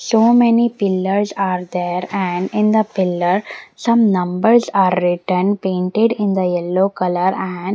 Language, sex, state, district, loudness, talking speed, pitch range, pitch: English, female, Maharashtra, Mumbai Suburban, -17 LUFS, 155 wpm, 180-210 Hz, 190 Hz